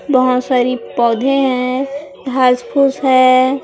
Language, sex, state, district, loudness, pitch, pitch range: Hindi, female, Chhattisgarh, Raipur, -14 LUFS, 255 Hz, 250-270 Hz